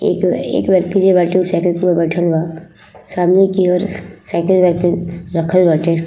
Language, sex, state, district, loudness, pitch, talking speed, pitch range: Bhojpuri, female, Uttar Pradesh, Ghazipur, -15 LUFS, 175 Hz, 170 wpm, 170-185 Hz